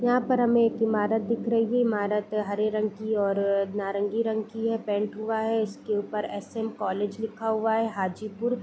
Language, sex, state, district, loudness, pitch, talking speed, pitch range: Hindi, female, Bihar, Gopalganj, -27 LUFS, 220 Hz, 195 wpm, 205-225 Hz